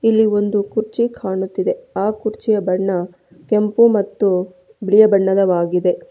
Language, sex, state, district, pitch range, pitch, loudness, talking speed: Kannada, female, Karnataka, Bangalore, 185-220 Hz, 205 Hz, -17 LUFS, 110 wpm